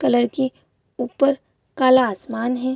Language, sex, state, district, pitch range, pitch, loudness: Hindi, female, Bihar, Bhagalpur, 240-260 Hz, 255 Hz, -20 LUFS